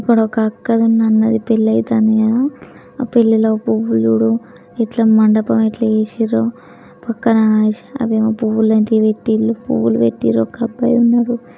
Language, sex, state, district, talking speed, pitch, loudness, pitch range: Telugu, female, Telangana, Karimnagar, 125 wpm, 220 Hz, -15 LUFS, 215-230 Hz